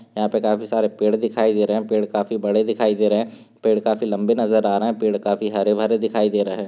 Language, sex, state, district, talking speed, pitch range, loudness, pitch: Hindi, male, Maharashtra, Dhule, 280 wpm, 105-110 Hz, -20 LUFS, 105 Hz